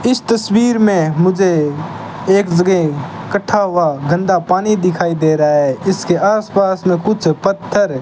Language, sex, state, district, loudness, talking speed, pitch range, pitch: Hindi, male, Rajasthan, Bikaner, -14 LUFS, 155 wpm, 165-205 Hz, 185 Hz